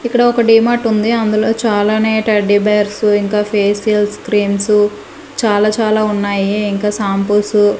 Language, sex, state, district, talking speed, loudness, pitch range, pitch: Telugu, female, Andhra Pradesh, Manyam, 125 wpm, -13 LUFS, 205-220 Hz, 210 Hz